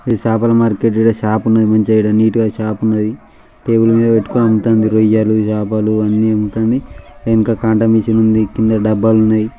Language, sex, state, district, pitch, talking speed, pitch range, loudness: Telugu, male, Telangana, Nalgonda, 110 Hz, 175 wpm, 110-115 Hz, -13 LUFS